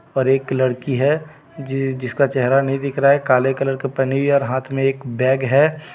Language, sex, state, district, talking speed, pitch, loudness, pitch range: Hindi, male, Jharkhand, Deoghar, 220 wpm, 135 Hz, -18 LUFS, 130-140 Hz